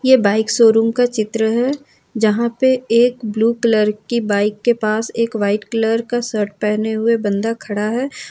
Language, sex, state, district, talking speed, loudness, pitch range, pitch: Hindi, female, Jharkhand, Ranchi, 190 wpm, -17 LUFS, 215-235 Hz, 225 Hz